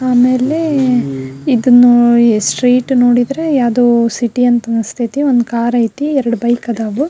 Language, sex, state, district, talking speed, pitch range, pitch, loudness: Kannada, female, Karnataka, Belgaum, 125 wpm, 235-255 Hz, 245 Hz, -12 LUFS